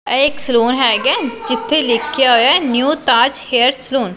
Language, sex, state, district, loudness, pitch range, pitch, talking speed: Punjabi, female, Punjab, Pathankot, -14 LUFS, 240-285 Hz, 260 Hz, 185 wpm